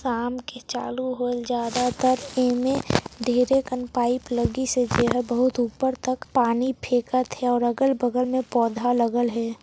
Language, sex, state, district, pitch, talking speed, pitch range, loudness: Hindi, female, Chhattisgarh, Sarguja, 250 Hz, 170 wpm, 240-255 Hz, -24 LUFS